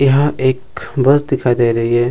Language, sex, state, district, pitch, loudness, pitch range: Hindi, male, Bihar, Jamui, 130 Hz, -15 LUFS, 120-140 Hz